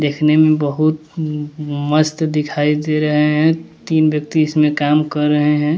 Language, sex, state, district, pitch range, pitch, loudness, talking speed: Hindi, male, Bihar, West Champaran, 150-155 Hz, 150 Hz, -16 LUFS, 155 wpm